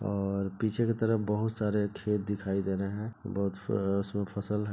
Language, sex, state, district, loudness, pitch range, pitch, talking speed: Hindi, male, Bihar, Begusarai, -32 LUFS, 100-105 Hz, 105 Hz, 205 wpm